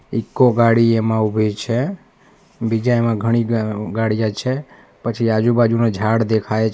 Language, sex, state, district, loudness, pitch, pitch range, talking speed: Gujarati, male, Gujarat, Valsad, -18 LUFS, 115 Hz, 110-120 Hz, 140 wpm